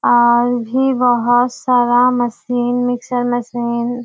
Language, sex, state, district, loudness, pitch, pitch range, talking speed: Hindi, female, Bihar, Kishanganj, -15 LUFS, 245 Hz, 240-245 Hz, 120 wpm